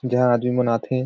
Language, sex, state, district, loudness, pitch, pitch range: Sadri, male, Chhattisgarh, Jashpur, -20 LUFS, 125 Hz, 120-125 Hz